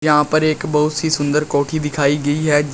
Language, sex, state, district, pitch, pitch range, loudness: Hindi, male, Uttar Pradesh, Shamli, 150 Hz, 145-155 Hz, -17 LUFS